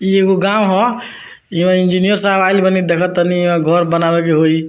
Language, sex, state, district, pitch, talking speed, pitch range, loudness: Bhojpuri, male, Bihar, Muzaffarpur, 180 Hz, 190 wpm, 170-195 Hz, -13 LUFS